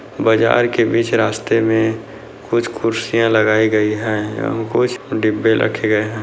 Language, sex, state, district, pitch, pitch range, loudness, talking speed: Hindi, male, Uttar Pradesh, Budaun, 110 Hz, 110-115 Hz, -16 LUFS, 145 wpm